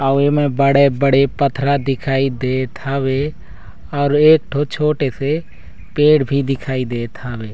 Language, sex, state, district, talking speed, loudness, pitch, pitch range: Chhattisgarhi, male, Chhattisgarh, Raigarh, 135 wpm, -16 LUFS, 140 Hz, 135-145 Hz